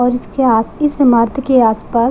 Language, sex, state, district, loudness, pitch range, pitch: Hindi, female, Bihar, Gopalganj, -13 LUFS, 230-265 Hz, 245 Hz